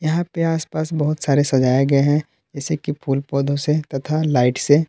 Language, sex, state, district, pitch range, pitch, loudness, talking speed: Hindi, male, Jharkhand, Palamu, 140-155 Hz, 145 Hz, -19 LUFS, 195 wpm